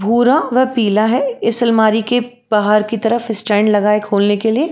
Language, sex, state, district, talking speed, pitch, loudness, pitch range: Hindi, female, Uttar Pradesh, Jalaun, 205 wpm, 225 Hz, -15 LUFS, 210-245 Hz